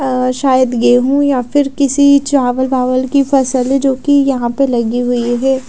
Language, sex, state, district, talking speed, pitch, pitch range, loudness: Hindi, female, Odisha, Khordha, 180 wpm, 265 Hz, 250-275 Hz, -13 LUFS